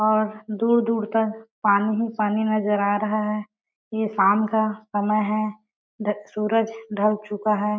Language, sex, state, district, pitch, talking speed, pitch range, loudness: Hindi, female, Chhattisgarh, Balrampur, 215 Hz, 160 wpm, 210-220 Hz, -23 LUFS